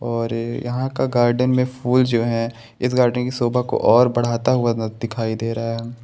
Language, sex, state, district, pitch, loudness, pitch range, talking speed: Hindi, male, Maharashtra, Chandrapur, 120 Hz, -20 LUFS, 115-125 Hz, 210 wpm